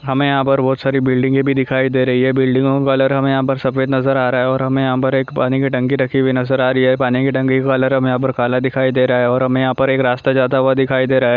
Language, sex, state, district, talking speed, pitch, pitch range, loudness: Hindi, male, Andhra Pradesh, Chittoor, 280 wpm, 130 Hz, 130-135 Hz, -15 LUFS